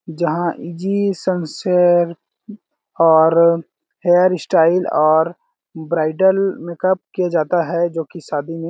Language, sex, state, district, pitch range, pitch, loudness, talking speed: Hindi, male, Chhattisgarh, Balrampur, 165-185 Hz, 175 Hz, -17 LUFS, 115 wpm